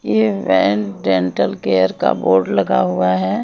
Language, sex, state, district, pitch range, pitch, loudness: Hindi, female, Haryana, Jhajjar, 95-100 Hz, 95 Hz, -16 LUFS